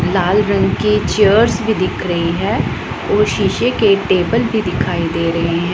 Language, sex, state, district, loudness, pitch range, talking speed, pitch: Hindi, female, Punjab, Pathankot, -15 LUFS, 170-205 Hz, 165 wpm, 180 Hz